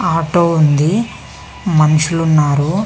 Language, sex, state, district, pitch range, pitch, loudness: Telugu, female, Andhra Pradesh, Visakhapatnam, 150-175 Hz, 165 Hz, -13 LUFS